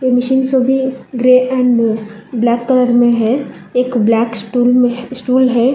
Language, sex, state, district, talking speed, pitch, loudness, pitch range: Hindi, female, Telangana, Hyderabad, 155 wpm, 250 Hz, -13 LUFS, 235-255 Hz